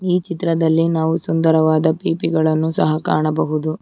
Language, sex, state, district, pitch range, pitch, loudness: Kannada, female, Karnataka, Bangalore, 155-165 Hz, 160 Hz, -17 LUFS